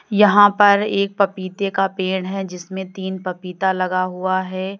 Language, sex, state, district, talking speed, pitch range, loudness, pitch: Hindi, female, Uttar Pradesh, Lalitpur, 160 wpm, 185-200 Hz, -19 LUFS, 190 Hz